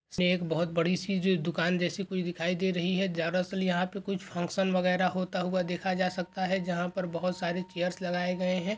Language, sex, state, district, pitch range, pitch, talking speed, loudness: Hindi, male, Bihar, Begusarai, 175-185 Hz, 180 Hz, 225 wpm, -30 LUFS